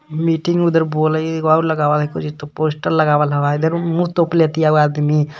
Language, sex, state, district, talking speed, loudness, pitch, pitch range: Magahi, male, Jharkhand, Palamu, 180 wpm, -16 LUFS, 155 Hz, 150-160 Hz